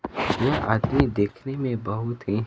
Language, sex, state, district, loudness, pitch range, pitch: Hindi, male, Bihar, Kaimur, -25 LUFS, 105-130 Hz, 115 Hz